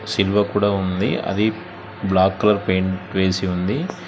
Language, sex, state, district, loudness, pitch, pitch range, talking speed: Telugu, male, Telangana, Hyderabad, -20 LUFS, 95 Hz, 95-105 Hz, 130 wpm